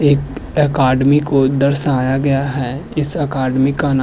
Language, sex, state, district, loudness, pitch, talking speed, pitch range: Hindi, male, Uttar Pradesh, Hamirpur, -16 LUFS, 140 Hz, 165 wpm, 135-145 Hz